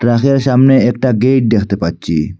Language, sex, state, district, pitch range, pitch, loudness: Bengali, male, Assam, Hailakandi, 100-130 Hz, 120 Hz, -12 LUFS